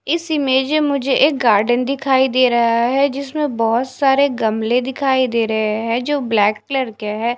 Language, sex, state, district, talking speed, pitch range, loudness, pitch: Hindi, female, Punjab, Fazilka, 180 wpm, 230-275 Hz, -17 LUFS, 260 Hz